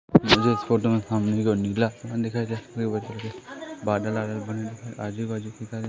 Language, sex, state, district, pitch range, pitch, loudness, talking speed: Hindi, male, Madhya Pradesh, Umaria, 110-115 Hz, 110 Hz, -25 LUFS, 60 wpm